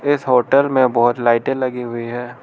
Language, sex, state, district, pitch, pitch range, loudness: Hindi, male, Arunachal Pradesh, Lower Dibang Valley, 125 Hz, 120-130 Hz, -17 LUFS